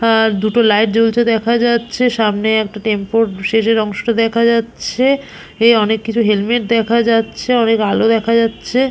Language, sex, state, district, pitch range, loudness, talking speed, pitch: Bengali, female, West Bengal, Purulia, 220-235 Hz, -14 LUFS, 155 wpm, 225 Hz